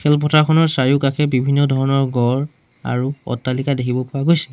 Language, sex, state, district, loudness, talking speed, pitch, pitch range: Assamese, male, Assam, Sonitpur, -17 LUFS, 120 wpm, 135 Hz, 130-150 Hz